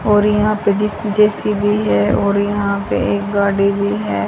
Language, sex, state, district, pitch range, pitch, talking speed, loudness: Hindi, female, Haryana, Charkhi Dadri, 200-210 Hz, 205 Hz, 180 wpm, -16 LUFS